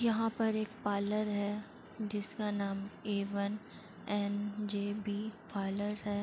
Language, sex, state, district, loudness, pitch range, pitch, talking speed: Hindi, female, Uttar Pradesh, Jalaun, -37 LUFS, 205-215 Hz, 205 Hz, 135 wpm